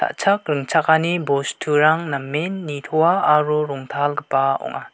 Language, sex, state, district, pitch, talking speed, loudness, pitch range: Garo, male, Meghalaya, West Garo Hills, 150 Hz, 85 wpm, -19 LUFS, 140-160 Hz